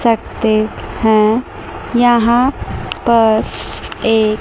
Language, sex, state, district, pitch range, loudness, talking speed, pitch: Hindi, female, Chandigarh, Chandigarh, 220-235 Hz, -14 LUFS, 80 wpm, 225 Hz